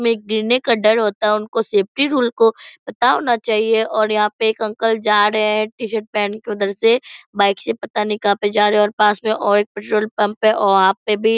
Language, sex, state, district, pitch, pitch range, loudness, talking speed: Hindi, female, Bihar, Purnia, 215 Hz, 210-225 Hz, -17 LUFS, 260 wpm